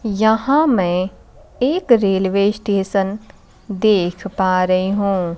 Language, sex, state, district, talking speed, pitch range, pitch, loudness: Hindi, female, Bihar, Kaimur, 100 wpm, 190-220 Hz, 200 Hz, -17 LUFS